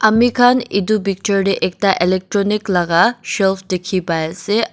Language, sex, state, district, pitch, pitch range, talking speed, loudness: Nagamese, female, Nagaland, Dimapur, 195 Hz, 185-220 Hz, 125 wpm, -16 LUFS